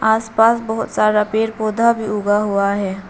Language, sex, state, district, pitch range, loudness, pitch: Hindi, female, Arunachal Pradesh, Lower Dibang Valley, 205-225 Hz, -17 LUFS, 215 Hz